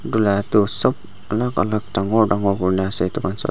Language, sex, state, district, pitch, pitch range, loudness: Nagamese, male, Nagaland, Dimapur, 100 Hz, 95-110 Hz, -19 LUFS